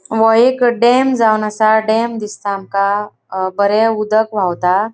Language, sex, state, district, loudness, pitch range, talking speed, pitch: Konkani, female, Goa, North and South Goa, -14 LUFS, 200-225 Hz, 145 wpm, 215 Hz